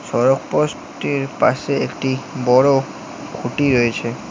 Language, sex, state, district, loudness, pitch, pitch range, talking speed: Bengali, male, West Bengal, Alipurduar, -18 LUFS, 135 Hz, 125-140 Hz, 110 wpm